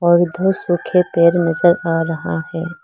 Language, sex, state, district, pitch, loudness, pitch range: Hindi, female, Arunachal Pradesh, Lower Dibang Valley, 175 Hz, -16 LUFS, 165-175 Hz